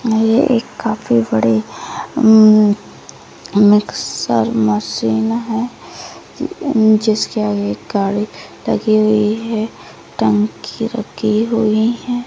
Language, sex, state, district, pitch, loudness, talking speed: Hindi, female, Rajasthan, Nagaur, 215 Hz, -15 LUFS, 90 wpm